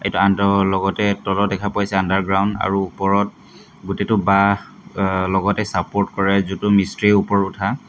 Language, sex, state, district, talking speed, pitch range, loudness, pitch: Assamese, male, Assam, Hailakandi, 130 wpm, 95-100 Hz, -18 LUFS, 100 Hz